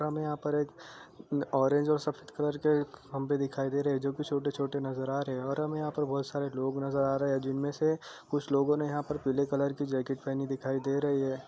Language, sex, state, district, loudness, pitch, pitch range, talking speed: Hindi, male, Uttar Pradesh, Jalaun, -32 LUFS, 140 Hz, 135-150 Hz, 245 wpm